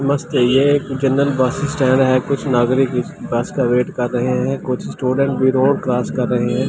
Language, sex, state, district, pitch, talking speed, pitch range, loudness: Hindi, male, Delhi, New Delhi, 130 Hz, 235 wpm, 125-135 Hz, -17 LUFS